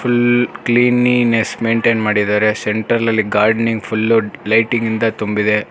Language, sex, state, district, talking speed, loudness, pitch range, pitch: Kannada, male, Karnataka, Bangalore, 95 wpm, -15 LUFS, 105-115 Hz, 115 Hz